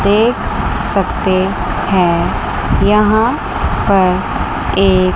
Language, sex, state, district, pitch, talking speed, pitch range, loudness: Hindi, female, Chandigarh, Chandigarh, 195 Hz, 70 wpm, 185-210 Hz, -14 LUFS